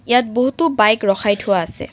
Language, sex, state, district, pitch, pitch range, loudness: Assamese, female, Assam, Kamrup Metropolitan, 215 Hz, 200-245 Hz, -16 LUFS